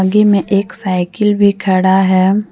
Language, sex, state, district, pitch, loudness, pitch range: Hindi, female, Jharkhand, Deoghar, 195 Hz, -13 LUFS, 185-205 Hz